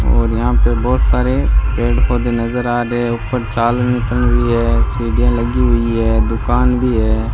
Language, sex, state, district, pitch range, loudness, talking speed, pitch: Hindi, male, Rajasthan, Bikaner, 110-120 Hz, -16 LUFS, 165 wpm, 115 Hz